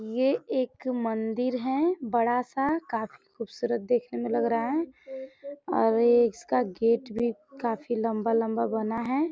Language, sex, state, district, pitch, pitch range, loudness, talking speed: Hindi, female, Bihar, Gopalganj, 235 Hz, 230-265 Hz, -27 LUFS, 140 wpm